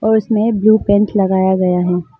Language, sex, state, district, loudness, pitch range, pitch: Hindi, female, Arunachal Pradesh, Longding, -14 LUFS, 185-220 Hz, 205 Hz